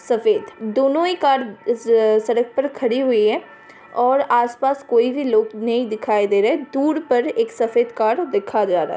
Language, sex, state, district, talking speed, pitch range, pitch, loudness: Hindi, female, Uttar Pradesh, Hamirpur, 185 wpm, 230-280 Hz, 245 Hz, -19 LUFS